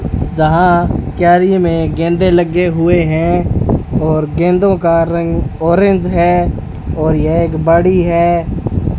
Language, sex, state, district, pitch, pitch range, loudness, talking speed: Hindi, male, Rajasthan, Bikaner, 170 Hz, 165-175 Hz, -12 LUFS, 120 wpm